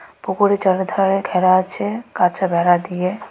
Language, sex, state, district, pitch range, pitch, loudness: Bengali, female, West Bengal, Alipurduar, 180-195 Hz, 190 Hz, -18 LUFS